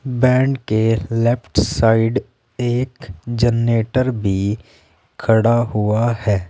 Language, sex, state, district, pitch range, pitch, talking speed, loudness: Hindi, male, Uttar Pradesh, Saharanpur, 105-120 Hz, 115 Hz, 90 wpm, -18 LUFS